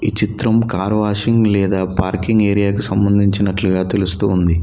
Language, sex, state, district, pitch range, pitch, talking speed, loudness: Telugu, male, Telangana, Mahabubabad, 95-105 Hz, 100 Hz, 130 wpm, -16 LUFS